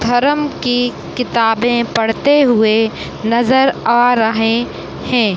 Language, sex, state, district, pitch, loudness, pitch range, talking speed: Hindi, female, Uttar Pradesh, Muzaffarnagar, 240 Hz, -14 LUFS, 225-250 Hz, 100 wpm